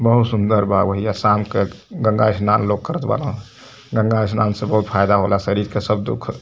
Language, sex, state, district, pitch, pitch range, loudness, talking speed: Hindi, male, Uttar Pradesh, Varanasi, 105 Hz, 100-110 Hz, -18 LUFS, 215 wpm